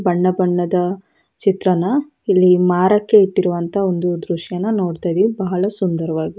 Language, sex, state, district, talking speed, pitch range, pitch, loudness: Kannada, female, Karnataka, Dakshina Kannada, 95 wpm, 180-195 Hz, 185 Hz, -17 LUFS